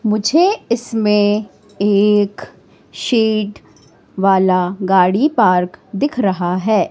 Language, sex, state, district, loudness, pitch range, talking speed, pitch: Hindi, female, Madhya Pradesh, Katni, -15 LUFS, 190-220 Hz, 85 wpm, 205 Hz